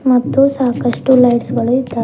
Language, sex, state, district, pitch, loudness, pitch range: Kannada, female, Karnataka, Bidar, 250 Hz, -13 LUFS, 245-260 Hz